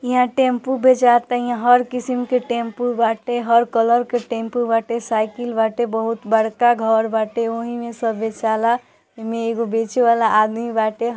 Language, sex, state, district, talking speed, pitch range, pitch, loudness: Bhojpuri, female, Bihar, East Champaran, 155 wpm, 225-245 Hz, 235 Hz, -19 LUFS